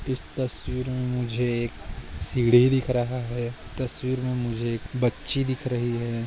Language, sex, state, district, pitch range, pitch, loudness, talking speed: Hindi, male, Goa, North and South Goa, 120-130 Hz, 125 Hz, -26 LUFS, 170 wpm